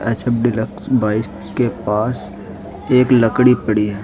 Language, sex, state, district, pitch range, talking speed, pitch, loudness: Hindi, male, Uttar Pradesh, Shamli, 105-125 Hz, 150 wpm, 115 Hz, -17 LUFS